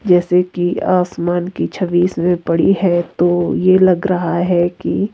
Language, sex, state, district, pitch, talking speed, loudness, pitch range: Hindi, female, Himachal Pradesh, Shimla, 175 Hz, 165 wpm, -15 LUFS, 175-185 Hz